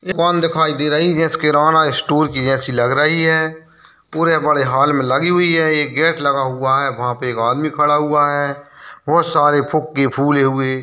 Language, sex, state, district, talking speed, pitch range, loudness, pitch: Hindi, male, Bihar, Jamui, 205 wpm, 135-160 Hz, -15 LUFS, 150 Hz